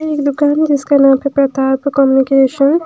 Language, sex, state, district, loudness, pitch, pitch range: Hindi, female, Bihar, West Champaran, -12 LUFS, 280 Hz, 270-290 Hz